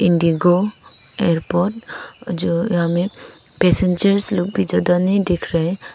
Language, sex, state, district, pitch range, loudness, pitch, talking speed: Hindi, female, Arunachal Pradesh, Papum Pare, 170-195 Hz, -18 LUFS, 175 Hz, 110 wpm